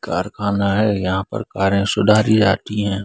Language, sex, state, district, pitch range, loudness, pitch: Hindi, male, Bihar, Madhepura, 95-105 Hz, -18 LUFS, 100 Hz